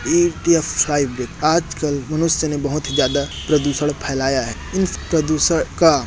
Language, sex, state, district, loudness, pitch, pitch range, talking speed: Hindi, male, Chhattisgarh, Korba, -19 LUFS, 150 Hz, 140-165 Hz, 170 wpm